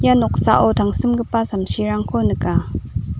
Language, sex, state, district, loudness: Garo, female, Meghalaya, South Garo Hills, -18 LUFS